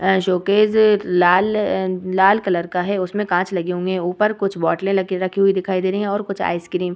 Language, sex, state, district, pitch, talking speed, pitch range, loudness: Hindi, female, Bihar, Vaishali, 190 Hz, 225 wpm, 180-200 Hz, -18 LUFS